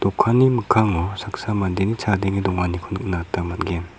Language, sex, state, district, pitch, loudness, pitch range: Garo, male, Meghalaya, South Garo Hills, 95 Hz, -21 LUFS, 90-105 Hz